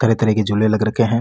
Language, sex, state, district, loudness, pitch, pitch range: Marwari, male, Rajasthan, Nagaur, -17 LUFS, 110 Hz, 110-115 Hz